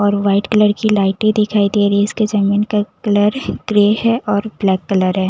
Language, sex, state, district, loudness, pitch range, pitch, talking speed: Hindi, female, Punjab, Kapurthala, -15 LUFS, 200-215 Hz, 205 Hz, 205 wpm